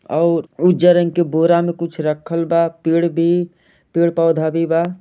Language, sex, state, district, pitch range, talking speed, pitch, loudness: Bhojpuri, male, Jharkhand, Sahebganj, 165-170 Hz, 170 wpm, 170 Hz, -16 LUFS